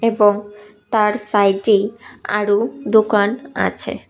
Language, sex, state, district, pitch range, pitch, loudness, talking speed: Bengali, female, Tripura, West Tripura, 205-220 Hz, 210 Hz, -17 LUFS, 115 wpm